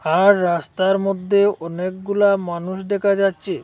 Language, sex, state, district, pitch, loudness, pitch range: Bengali, male, Assam, Hailakandi, 195 Hz, -19 LUFS, 180-200 Hz